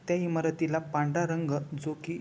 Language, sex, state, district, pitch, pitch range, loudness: Marathi, male, Maharashtra, Chandrapur, 160 Hz, 150-170 Hz, -31 LUFS